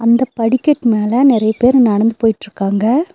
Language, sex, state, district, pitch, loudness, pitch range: Tamil, female, Tamil Nadu, Nilgiris, 230 Hz, -13 LUFS, 220-255 Hz